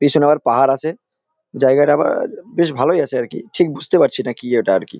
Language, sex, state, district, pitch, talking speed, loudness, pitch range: Bengali, male, West Bengal, Jalpaiguri, 145 Hz, 205 wpm, -16 LUFS, 135-170 Hz